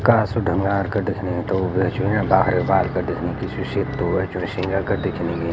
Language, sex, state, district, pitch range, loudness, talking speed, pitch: Garhwali, male, Uttarakhand, Uttarkashi, 90-100 Hz, -21 LUFS, 55 wpm, 95 Hz